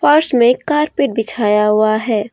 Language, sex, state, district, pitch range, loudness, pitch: Hindi, female, Jharkhand, Deoghar, 215-285 Hz, -14 LUFS, 235 Hz